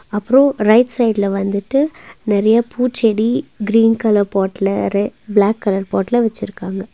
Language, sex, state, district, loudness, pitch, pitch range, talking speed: Tamil, female, Tamil Nadu, Nilgiris, -16 LUFS, 215 Hz, 200-235 Hz, 120 wpm